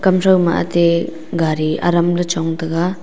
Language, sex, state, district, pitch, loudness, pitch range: Wancho, female, Arunachal Pradesh, Longding, 170 Hz, -16 LUFS, 165-175 Hz